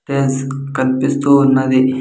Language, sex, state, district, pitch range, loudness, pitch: Telugu, male, Andhra Pradesh, Sri Satya Sai, 130-140 Hz, -15 LUFS, 135 Hz